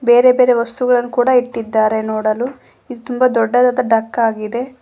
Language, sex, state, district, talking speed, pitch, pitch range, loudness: Kannada, female, Karnataka, Koppal, 135 wpm, 245 Hz, 225-250 Hz, -15 LUFS